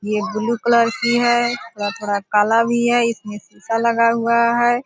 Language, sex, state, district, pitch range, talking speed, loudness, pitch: Hindi, female, Bihar, Purnia, 215-240 Hz, 175 wpm, -18 LUFS, 230 Hz